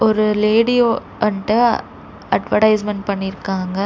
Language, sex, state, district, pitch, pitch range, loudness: Tamil, female, Tamil Nadu, Chennai, 210 Hz, 200-220 Hz, -17 LUFS